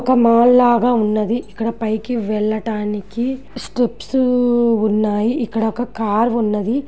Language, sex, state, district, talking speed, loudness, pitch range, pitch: Telugu, female, Andhra Pradesh, Guntur, 115 wpm, -17 LUFS, 215-245 Hz, 230 Hz